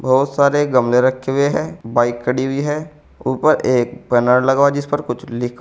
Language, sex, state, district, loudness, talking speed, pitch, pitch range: Hindi, male, Uttar Pradesh, Saharanpur, -17 LUFS, 215 wpm, 130 Hz, 120-145 Hz